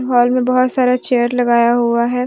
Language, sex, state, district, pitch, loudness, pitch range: Hindi, female, Jharkhand, Deoghar, 245 Hz, -14 LUFS, 240-250 Hz